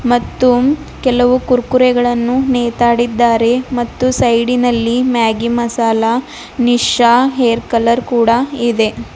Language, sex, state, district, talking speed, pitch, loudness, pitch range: Kannada, female, Karnataka, Bidar, 90 wpm, 240 Hz, -13 LUFS, 235-250 Hz